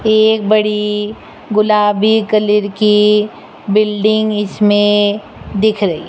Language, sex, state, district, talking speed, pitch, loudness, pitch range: Hindi, female, Rajasthan, Jaipur, 90 wpm, 210 Hz, -13 LUFS, 205-215 Hz